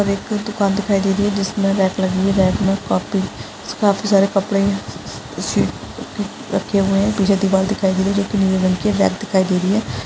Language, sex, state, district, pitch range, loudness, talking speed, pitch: Hindi, female, Rajasthan, Churu, 190-200 Hz, -18 LUFS, 225 wpm, 195 Hz